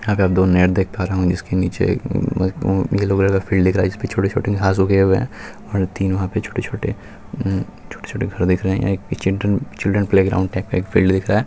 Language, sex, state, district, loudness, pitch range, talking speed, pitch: Hindi, male, Bihar, Purnia, -19 LUFS, 95-100 Hz, 230 wpm, 95 Hz